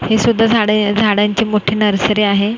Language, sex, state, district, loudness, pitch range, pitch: Marathi, female, Maharashtra, Mumbai Suburban, -14 LUFS, 205-220 Hz, 210 Hz